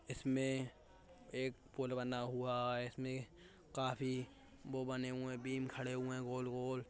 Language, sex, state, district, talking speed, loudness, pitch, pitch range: Hindi, male, Uttar Pradesh, Budaun, 150 wpm, -42 LUFS, 130 Hz, 125-130 Hz